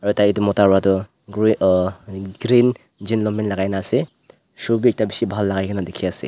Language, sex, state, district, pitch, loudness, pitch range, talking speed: Nagamese, male, Nagaland, Dimapur, 100 Hz, -19 LUFS, 95-110 Hz, 200 wpm